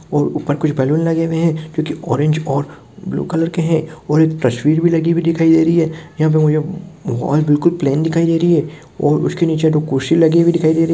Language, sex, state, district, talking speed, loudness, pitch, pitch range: Hindi, male, Rajasthan, Nagaur, 245 wpm, -16 LUFS, 160 Hz, 150-165 Hz